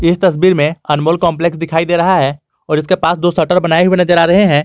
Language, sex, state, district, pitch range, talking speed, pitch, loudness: Hindi, male, Jharkhand, Garhwa, 160-180 Hz, 260 wpm, 170 Hz, -12 LUFS